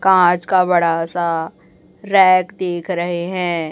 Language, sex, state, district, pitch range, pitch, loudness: Hindi, female, Chhattisgarh, Raipur, 170-185 Hz, 175 Hz, -16 LUFS